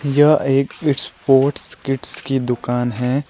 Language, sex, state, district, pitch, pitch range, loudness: Hindi, male, West Bengal, Alipurduar, 135 Hz, 125-145 Hz, -18 LUFS